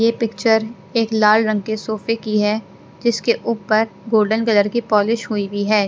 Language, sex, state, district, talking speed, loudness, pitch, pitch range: Hindi, female, Punjab, Pathankot, 185 wpm, -18 LUFS, 220 Hz, 210-230 Hz